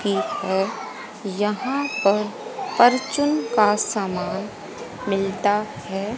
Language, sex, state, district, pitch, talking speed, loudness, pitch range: Hindi, female, Haryana, Rohtak, 210 Hz, 85 wpm, -22 LUFS, 195-220 Hz